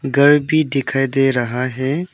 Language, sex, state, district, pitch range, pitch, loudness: Hindi, male, Arunachal Pradesh, Longding, 130-145 Hz, 135 Hz, -16 LUFS